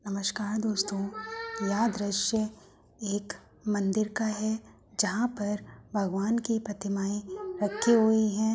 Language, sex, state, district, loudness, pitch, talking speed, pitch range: Hindi, female, Uttar Pradesh, Hamirpur, -30 LUFS, 210 Hz, 110 wpm, 200-220 Hz